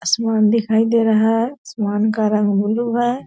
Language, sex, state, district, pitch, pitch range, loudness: Hindi, female, Bihar, Purnia, 220 Hz, 215-230 Hz, -17 LUFS